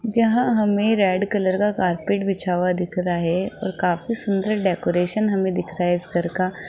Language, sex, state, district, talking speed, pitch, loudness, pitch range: Hindi, female, Rajasthan, Jaipur, 200 wpm, 190 Hz, -21 LUFS, 180-205 Hz